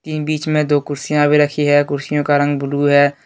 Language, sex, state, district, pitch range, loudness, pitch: Hindi, male, Jharkhand, Deoghar, 145-150 Hz, -16 LUFS, 145 Hz